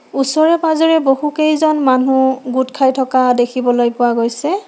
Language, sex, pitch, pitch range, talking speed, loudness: Assamese, female, 265 Hz, 255-310 Hz, 130 wpm, -14 LUFS